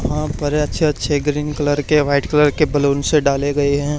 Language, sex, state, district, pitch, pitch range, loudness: Hindi, male, Haryana, Charkhi Dadri, 145 Hz, 145-150 Hz, -17 LUFS